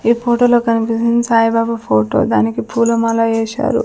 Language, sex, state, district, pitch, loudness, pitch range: Telugu, female, Andhra Pradesh, Sri Satya Sai, 230 Hz, -15 LUFS, 225-235 Hz